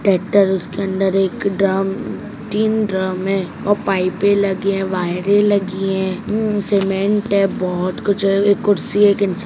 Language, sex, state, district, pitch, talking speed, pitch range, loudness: Maithili, male, Bihar, Saharsa, 195 Hz, 160 wpm, 190-205 Hz, -17 LUFS